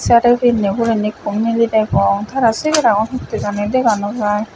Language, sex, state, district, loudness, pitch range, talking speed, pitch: Chakma, female, Tripura, West Tripura, -16 LUFS, 210-235 Hz, 185 wpm, 225 Hz